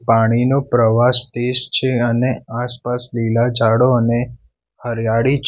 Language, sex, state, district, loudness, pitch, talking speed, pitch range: Gujarati, male, Gujarat, Valsad, -16 LUFS, 120 Hz, 110 wpm, 115-125 Hz